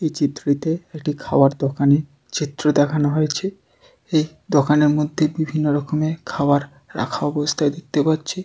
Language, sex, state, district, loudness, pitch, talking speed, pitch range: Bengali, male, West Bengal, Jalpaiguri, -20 LUFS, 150 Hz, 135 wpm, 145-155 Hz